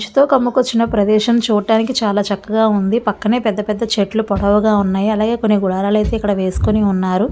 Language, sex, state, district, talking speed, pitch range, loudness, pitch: Telugu, female, Andhra Pradesh, Visakhapatnam, 170 wpm, 205-225 Hz, -15 LUFS, 215 Hz